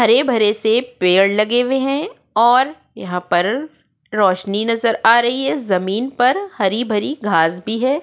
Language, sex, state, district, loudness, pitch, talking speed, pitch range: Hindi, female, Goa, North and South Goa, -17 LUFS, 225 Hz, 170 wpm, 195-250 Hz